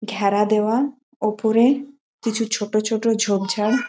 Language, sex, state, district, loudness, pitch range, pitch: Bengali, female, West Bengal, Malda, -21 LUFS, 215-240 Hz, 220 Hz